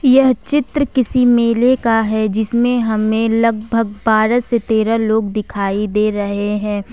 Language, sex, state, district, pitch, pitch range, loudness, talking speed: Hindi, female, Jharkhand, Ranchi, 225 Hz, 215-245 Hz, -15 LUFS, 145 wpm